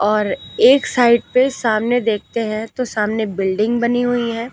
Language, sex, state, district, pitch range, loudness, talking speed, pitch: Hindi, female, Uttar Pradesh, Lucknow, 215-245 Hz, -17 LUFS, 170 wpm, 230 Hz